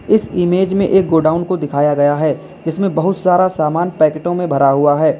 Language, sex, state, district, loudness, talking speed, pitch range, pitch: Hindi, male, Uttar Pradesh, Lalitpur, -15 LUFS, 205 wpm, 150-185 Hz, 170 Hz